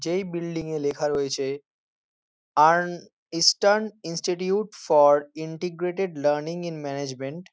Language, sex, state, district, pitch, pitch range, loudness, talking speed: Bengali, male, West Bengal, North 24 Parganas, 165 Hz, 145-180 Hz, -24 LUFS, 110 wpm